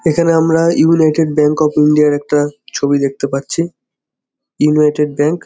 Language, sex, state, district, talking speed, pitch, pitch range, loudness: Bengali, male, West Bengal, Jhargram, 155 wpm, 150 Hz, 145-165 Hz, -13 LUFS